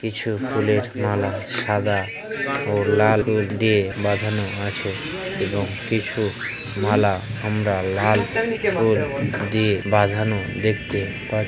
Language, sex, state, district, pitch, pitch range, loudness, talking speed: Bengali, male, West Bengal, Dakshin Dinajpur, 105 Hz, 100-110 Hz, -22 LUFS, 55 wpm